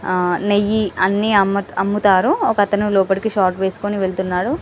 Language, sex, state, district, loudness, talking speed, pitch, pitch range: Telugu, female, Telangana, Karimnagar, -17 LUFS, 130 wpm, 200 Hz, 190-210 Hz